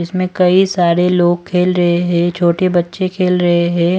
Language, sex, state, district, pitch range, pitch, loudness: Hindi, male, Punjab, Pathankot, 175-185 Hz, 180 Hz, -14 LUFS